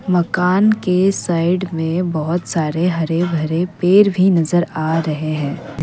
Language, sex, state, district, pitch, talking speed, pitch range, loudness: Hindi, female, Assam, Kamrup Metropolitan, 175 Hz, 145 wpm, 160-180 Hz, -17 LUFS